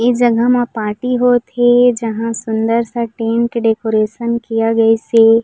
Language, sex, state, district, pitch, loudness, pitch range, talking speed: Chhattisgarhi, female, Chhattisgarh, Raigarh, 230 Hz, -14 LUFS, 225-240 Hz, 155 wpm